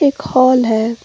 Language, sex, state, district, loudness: Hindi, female, Jharkhand, Garhwa, -13 LUFS